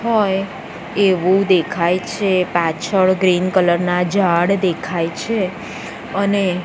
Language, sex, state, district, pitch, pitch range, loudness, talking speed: Gujarati, female, Gujarat, Gandhinagar, 185 Hz, 175-195 Hz, -17 LUFS, 110 wpm